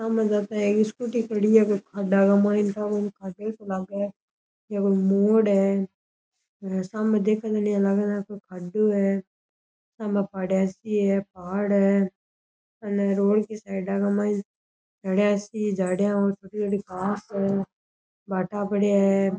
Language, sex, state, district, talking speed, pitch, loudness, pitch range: Rajasthani, male, Rajasthan, Churu, 50 wpm, 200 Hz, -24 LUFS, 195-210 Hz